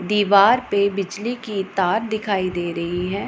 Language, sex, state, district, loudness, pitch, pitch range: Hindi, female, Punjab, Pathankot, -20 LUFS, 200 Hz, 185-210 Hz